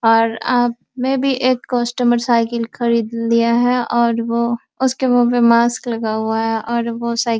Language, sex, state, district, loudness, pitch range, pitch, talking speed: Hindi, female, Bihar, Araria, -17 LUFS, 230-245 Hz, 235 Hz, 185 wpm